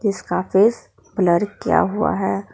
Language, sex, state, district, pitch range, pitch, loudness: Hindi, female, Jharkhand, Palamu, 175-205 Hz, 185 Hz, -19 LUFS